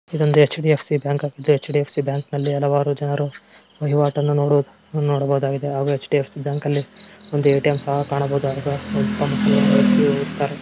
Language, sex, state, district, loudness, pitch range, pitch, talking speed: Kannada, male, Karnataka, Mysore, -19 LUFS, 140-150 Hz, 145 Hz, 100 wpm